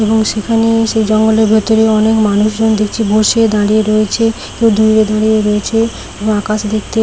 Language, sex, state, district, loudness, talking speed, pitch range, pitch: Bengali, female, West Bengal, Paschim Medinipur, -12 LUFS, 155 wpm, 215-220 Hz, 220 Hz